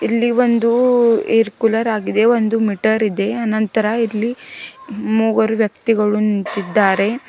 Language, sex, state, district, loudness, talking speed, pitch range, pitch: Kannada, female, Karnataka, Bidar, -16 LUFS, 105 wpm, 215-230 Hz, 220 Hz